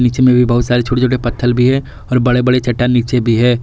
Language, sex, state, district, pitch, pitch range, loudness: Hindi, male, Jharkhand, Garhwa, 125 Hz, 120-125 Hz, -13 LUFS